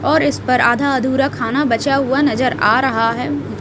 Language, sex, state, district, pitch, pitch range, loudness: Hindi, female, Haryana, Rohtak, 260 Hz, 230-275 Hz, -16 LUFS